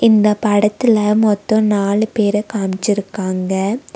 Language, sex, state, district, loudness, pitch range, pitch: Tamil, female, Tamil Nadu, Nilgiris, -16 LUFS, 200-215 Hz, 210 Hz